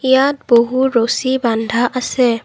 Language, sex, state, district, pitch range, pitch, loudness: Assamese, female, Assam, Kamrup Metropolitan, 235-260 Hz, 250 Hz, -15 LUFS